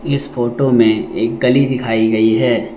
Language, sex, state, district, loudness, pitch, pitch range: Hindi, male, Arunachal Pradesh, Lower Dibang Valley, -15 LUFS, 120 Hz, 110-135 Hz